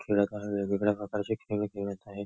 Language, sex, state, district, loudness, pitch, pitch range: Marathi, male, Maharashtra, Nagpur, -31 LUFS, 105 Hz, 100-105 Hz